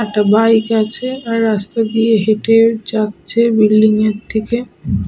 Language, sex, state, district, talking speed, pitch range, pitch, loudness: Bengali, female, Jharkhand, Sahebganj, 130 wpm, 215-230 Hz, 220 Hz, -14 LUFS